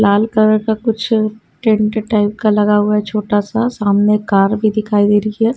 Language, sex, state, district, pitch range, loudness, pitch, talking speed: Hindi, female, Haryana, Rohtak, 205-220 Hz, -14 LUFS, 210 Hz, 205 wpm